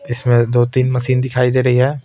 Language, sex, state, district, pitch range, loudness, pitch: Hindi, male, Bihar, Patna, 120-130 Hz, -15 LUFS, 125 Hz